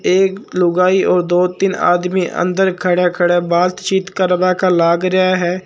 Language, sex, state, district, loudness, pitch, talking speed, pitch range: Marwari, male, Rajasthan, Nagaur, -15 LUFS, 180 Hz, 160 wpm, 175-185 Hz